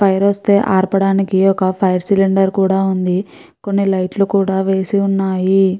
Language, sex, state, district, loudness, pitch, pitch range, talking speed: Telugu, female, Andhra Pradesh, Chittoor, -15 LUFS, 195 Hz, 190-195 Hz, 135 wpm